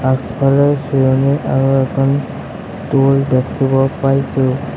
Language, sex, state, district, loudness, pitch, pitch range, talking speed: Assamese, male, Assam, Sonitpur, -14 LUFS, 135 Hz, 130-140 Hz, 90 wpm